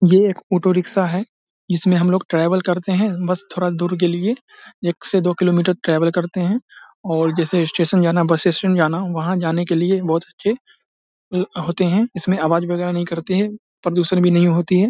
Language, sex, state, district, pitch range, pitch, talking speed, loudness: Hindi, male, Bihar, Samastipur, 175-185 Hz, 180 Hz, 195 wpm, -19 LUFS